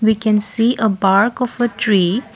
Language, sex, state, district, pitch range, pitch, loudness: English, female, Assam, Kamrup Metropolitan, 205-235 Hz, 220 Hz, -15 LUFS